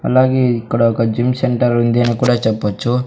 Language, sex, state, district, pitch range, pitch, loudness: Telugu, male, Andhra Pradesh, Sri Satya Sai, 115-125 Hz, 120 Hz, -15 LUFS